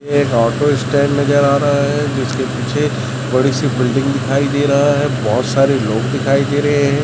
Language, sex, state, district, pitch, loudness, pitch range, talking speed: Hindi, male, Chhattisgarh, Raipur, 140 Hz, -15 LUFS, 130-145 Hz, 195 wpm